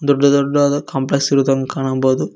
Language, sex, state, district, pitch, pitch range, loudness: Kannada, male, Karnataka, Koppal, 140 Hz, 135-140 Hz, -16 LUFS